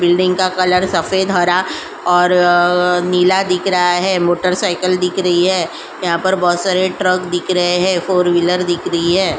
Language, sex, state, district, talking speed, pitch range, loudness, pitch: Hindi, female, Uttar Pradesh, Jyotiba Phule Nagar, 165 wpm, 175-185 Hz, -14 LUFS, 180 Hz